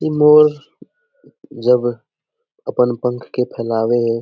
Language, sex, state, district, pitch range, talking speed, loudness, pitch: Hindi, male, Bihar, Jamui, 120-155 Hz, 130 wpm, -16 LUFS, 125 Hz